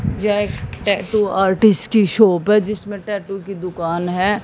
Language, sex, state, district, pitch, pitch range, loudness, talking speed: Hindi, female, Haryana, Jhajjar, 200 Hz, 190-210 Hz, -18 LUFS, 160 wpm